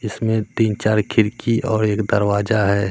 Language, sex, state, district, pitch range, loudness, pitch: Hindi, male, Bihar, Katihar, 105-110 Hz, -19 LUFS, 110 Hz